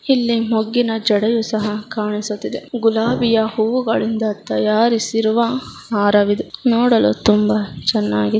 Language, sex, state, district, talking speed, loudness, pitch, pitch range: Kannada, female, Karnataka, Raichur, 95 wpm, -17 LUFS, 220 Hz, 210-230 Hz